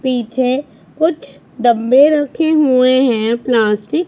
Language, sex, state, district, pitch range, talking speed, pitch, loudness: Hindi, female, Punjab, Pathankot, 240-290 Hz, 120 wpm, 255 Hz, -14 LUFS